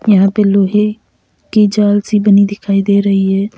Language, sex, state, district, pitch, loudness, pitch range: Hindi, female, Uttar Pradesh, Lalitpur, 200 Hz, -12 LUFS, 200-210 Hz